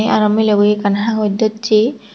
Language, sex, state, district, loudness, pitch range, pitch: Chakma, female, Tripura, Dhalai, -14 LUFS, 210-220 Hz, 215 Hz